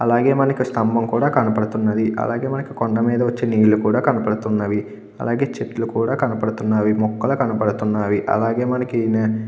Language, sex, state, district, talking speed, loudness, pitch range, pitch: Telugu, male, Andhra Pradesh, Krishna, 140 wpm, -19 LUFS, 110-120 Hz, 115 Hz